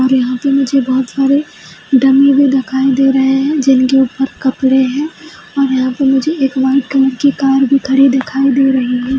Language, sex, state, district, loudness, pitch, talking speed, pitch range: Hindi, female, Bihar, Jahanabad, -12 LUFS, 270 Hz, 210 wpm, 265-275 Hz